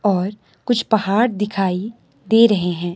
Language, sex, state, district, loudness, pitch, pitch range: Hindi, male, Himachal Pradesh, Shimla, -18 LUFS, 205 Hz, 185-225 Hz